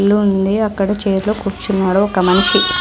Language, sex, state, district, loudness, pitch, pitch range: Telugu, female, Andhra Pradesh, Sri Satya Sai, -15 LUFS, 200 Hz, 195-210 Hz